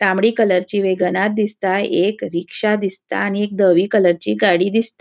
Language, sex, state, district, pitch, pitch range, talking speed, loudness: Konkani, female, Goa, North and South Goa, 195 Hz, 180-210 Hz, 170 wpm, -17 LUFS